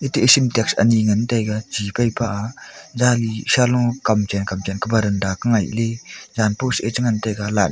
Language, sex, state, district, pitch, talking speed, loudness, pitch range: Wancho, female, Arunachal Pradesh, Longding, 110 Hz, 170 wpm, -19 LUFS, 105-120 Hz